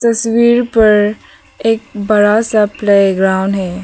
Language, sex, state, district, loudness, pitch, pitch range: Hindi, female, Arunachal Pradesh, Papum Pare, -12 LUFS, 215 Hz, 200-225 Hz